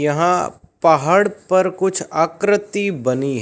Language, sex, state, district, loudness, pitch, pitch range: Hindi, male, Rajasthan, Bikaner, -17 LUFS, 180 Hz, 160-200 Hz